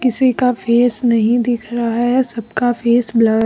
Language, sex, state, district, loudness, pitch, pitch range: Hindi, female, Jharkhand, Deoghar, -16 LUFS, 240 Hz, 230-245 Hz